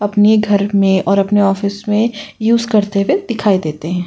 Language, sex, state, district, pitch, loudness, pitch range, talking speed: Hindi, female, Uttar Pradesh, Jyotiba Phule Nagar, 200 Hz, -14 LUFS, 195-210 Hz, 190 wpm